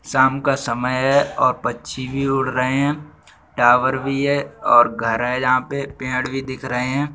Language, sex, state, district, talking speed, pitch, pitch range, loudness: Bundeli, male, Uttar Pradesh, Budaun, 195 wpm, 130 Hz, 125-140 Hz, -19 LUFS